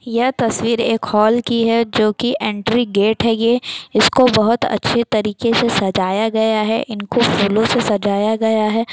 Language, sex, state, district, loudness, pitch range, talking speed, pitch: Hindi, female, Bihar, Jamui, -16 LUFS, 215-235 Hz, 175 wpm, 225 Hz